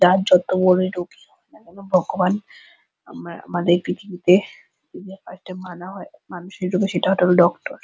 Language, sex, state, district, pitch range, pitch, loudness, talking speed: Bengali, female, West Bengal, Purulia, 180-190 Hz, 185 Hz, -19 LUFS, 160 wpm